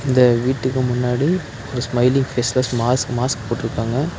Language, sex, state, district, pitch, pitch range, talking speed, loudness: Tamil, male, Tamil Nadu, Nilgiris, 125 Hz, 120-130 Hz, 130 wpm, -19 LUFS